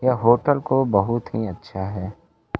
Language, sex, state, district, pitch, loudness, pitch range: Hindi, male, Bihar, Kaimur, 115 Hz, -22 LUFS, 100-125 Hz